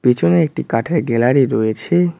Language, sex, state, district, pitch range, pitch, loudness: Bengali, male, West Bengal, Cooch Behar, 115-160 Hz, 125 Hz, -16 LUFS